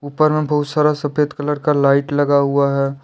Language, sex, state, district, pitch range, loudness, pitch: Hindi, male, Jharkhand, Deoghar, 140-150 Hz, -17 LUFS, 145 Hz